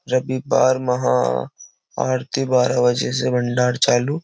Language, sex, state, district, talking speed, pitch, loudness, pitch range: Hindi, male, Uttar Pradesh, Jyotiba Phule Nagar, 125 wpm, 125 Hz, -19 LUFS, 125-130 Hz